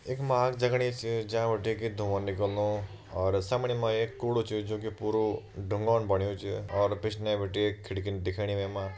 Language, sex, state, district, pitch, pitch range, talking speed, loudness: Hindi, male, Uttarakhand, Uttarkashi, 105 Hz, 100-115 Hz, 200 wpm, -31 LUFS